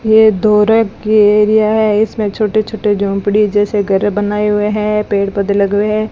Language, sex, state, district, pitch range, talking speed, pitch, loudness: Hindi, female, Rajasthan, Bikaner, 205-215 Hz, 185 wpm, 210 Hz, -13 LUFS